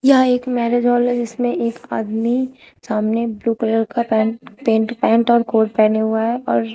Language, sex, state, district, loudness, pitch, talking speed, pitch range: Hindi, female, Uttar Pradesh, Shamli, -18 LUFS, 230 Hz, 185 wpm, 220-245 Hz